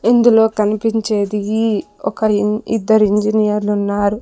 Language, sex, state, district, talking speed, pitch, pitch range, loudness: Telugu, female, Andhra Pradesh, Sri Satya Sai, 115 wpm, 215 Hz, 210-220 Hz, -16 LUFS